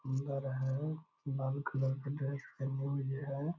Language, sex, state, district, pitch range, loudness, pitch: Hindi, male, Bihar, Purnia, 135-140 Hz, -38 LUFS, 140 Hz